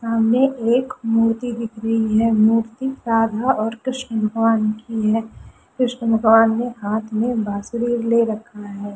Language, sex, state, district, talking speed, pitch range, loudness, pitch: Hindi, female, Chhattisgarh, Sukma, 145 wpm, 220-240 Hz, -19 LUFS, 225 Hz